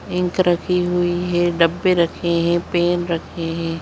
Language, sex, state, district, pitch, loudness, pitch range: Hindi, female, Bihar, Begusarai, 175 Hz, -19 LUFS, 170-180 Hz